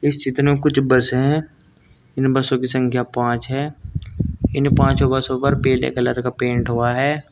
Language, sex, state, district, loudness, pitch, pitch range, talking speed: Hindi, male, Uttar Pradesh, Saharanpur, -19 LUFS, 130 Hz, 125-140 Hz, 155 wpm